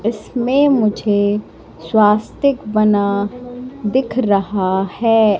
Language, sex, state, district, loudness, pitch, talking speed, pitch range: Hindi, female, Madhya Pradesh, Katni, -16 LUFS, 215 Hz, 80 wpm, 205-245 Hz